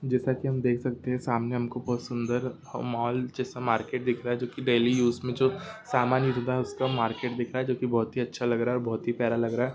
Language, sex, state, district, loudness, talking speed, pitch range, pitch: Hindi, male, Andhra Pradesh, Guntur, -28 LUFS, 275 wpm, 120-130 Hz, 125 Hz